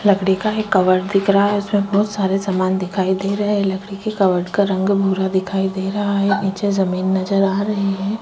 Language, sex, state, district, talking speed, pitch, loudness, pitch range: Hindi, female, Chhattisgarh, Kabirdham, 225 wpm, 195 Hz, -18 LUFS, 190-200 Hz